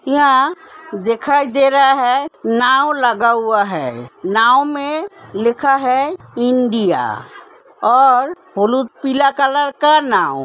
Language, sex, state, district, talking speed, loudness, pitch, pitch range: Hindi, female, Uttar Pradesh, Hamirpur, 120 wpm, -15 LUFS, 265 Hz, 230-285 Hz